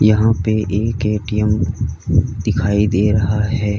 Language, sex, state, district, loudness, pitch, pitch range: Hindi, male, Uttar Pradesh, Lalitpur, -17 LUFS, 105 Hz, 100-110 Hz